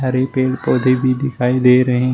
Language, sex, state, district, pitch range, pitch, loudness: Hindi, male, Uttar Pradesh, Shamli, 125-130 Hz, 130 Hz, -15 LUFS